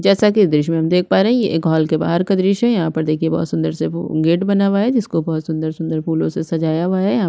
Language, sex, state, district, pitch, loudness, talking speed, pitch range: Hindi, female, Chhattisgarh, Sukma, 165 Hz, -17 LUFS, 305 wpm, 160-195 Hz